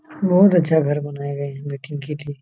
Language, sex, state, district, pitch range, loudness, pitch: Hindi, male, Jharkhand, Jamtara, 140-165 Hz, -20 LUFS, 145 Hz